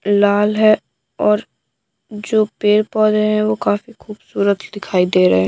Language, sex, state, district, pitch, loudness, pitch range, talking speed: Hindi, female, Bihar, Patna, 210 Hz, -16 LUFS, 200-215 Hz, 155 wpm